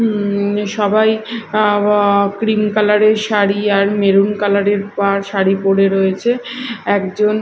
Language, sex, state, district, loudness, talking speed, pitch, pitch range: Bengali, female, Odisha, Malkangiri, -15 LUFS, 140 wpm, 205 Hz, 200-215 Hz